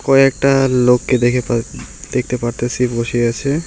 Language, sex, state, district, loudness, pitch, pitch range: Bengali, male, West Bengal, Alipurduar, -16 LUFS, 125 Hz, 120-135 Hz